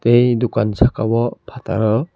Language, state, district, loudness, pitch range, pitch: Kokborok, Tripura, Dhalai, -17 LUFS, 110-120 Hz, 120 Hz